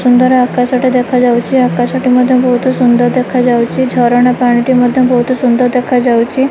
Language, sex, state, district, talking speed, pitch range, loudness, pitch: Odia, female, Odisha, Malkangiri, 165 wpm, 245-255 Hz, -10 LUFS, 250 Hz